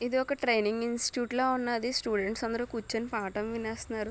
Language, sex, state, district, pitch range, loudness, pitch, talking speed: Telugu, female, Telangana, Nalgonda, 220-245 Hz, -31 LUFS, 230 Hz, 160 wpm